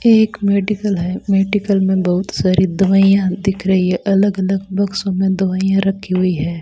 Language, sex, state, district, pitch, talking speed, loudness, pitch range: Hindi, female, Rajasthan, Bikaner, 195 Hz, 170 wpm, -16 LUFS, 185-200 Hz